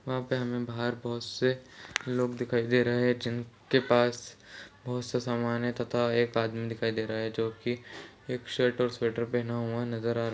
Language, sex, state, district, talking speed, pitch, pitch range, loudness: Hindi, male, Chhattisgarh, Raigarh, 210 wpm, 120 Hz, 115-125 Hz, -30 LUFS